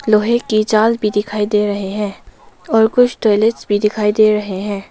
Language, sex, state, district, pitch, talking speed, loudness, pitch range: Hindi, female, Arunachal Pradesh, Lower Dibang Valley, 210 Hz, 195 wpm, -15 LUFS, 205-220 Hz